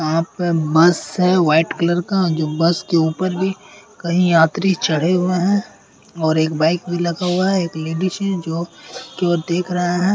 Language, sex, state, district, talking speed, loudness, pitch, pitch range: Hindi, male, Uttar Pradesh, Hamirpur, 190 wpm, -18 LUFS, 175 Hz, 165-185 Hz